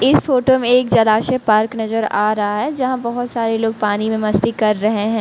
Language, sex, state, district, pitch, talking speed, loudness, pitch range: Hindi, female, Uttar Pradesh, Lalitpur, 225 Hz, 230 wpm, -16 LUFS, 215-245 Hz